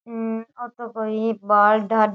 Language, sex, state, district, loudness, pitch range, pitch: Rajasthani, female, Rajasthan, Nagaur, -21 LUFS, 215-230 Hz, 225 Hz